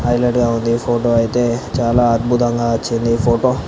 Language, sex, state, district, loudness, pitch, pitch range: Telugu, male, Andhra Pradesh, Anantapur, -16 LUFS, 120 Hz, 115-120 Hz